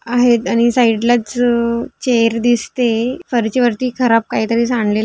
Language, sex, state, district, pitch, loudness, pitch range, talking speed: Marathi, female, Maharashtra, Dhule, 235 Hz, -15 LUFS, 230-245 Hz, 155 wpm